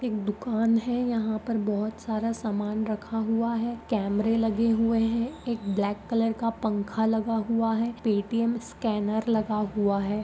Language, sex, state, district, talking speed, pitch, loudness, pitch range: Magahi, female, Bihar, Gaya, 160 wpm, 225 Hz, -27 LUFS, 215-230 Hz